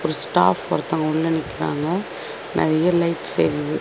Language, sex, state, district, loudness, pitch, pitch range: Tamil, female, Tamil Nadu, Chennai, -21 LUFS, 165 Hz, 155-180 Hz